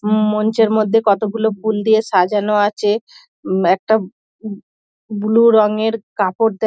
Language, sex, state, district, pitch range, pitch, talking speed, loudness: Bengali, female, West Bengal, Dakshin Dinajpur, 205-220 Hz, 215 Hz, 135 wpm, -16 LUFS